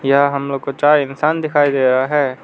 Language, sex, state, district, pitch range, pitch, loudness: Hindi, male, Arunachal Pradesh, Lower Dibang Valley, 135-150 Hz, 140 Hz, -16 LUFS